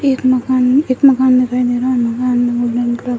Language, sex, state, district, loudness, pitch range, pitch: Hindi, female, Bihar, Jahanabad, -14 LUFS, 245-255 Hz, 250 Hz